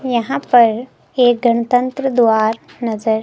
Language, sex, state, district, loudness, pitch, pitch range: Hindi, female, Himachal Pradesh, Shimla, -15 LUFS, 235 Hz, 225-250 Hz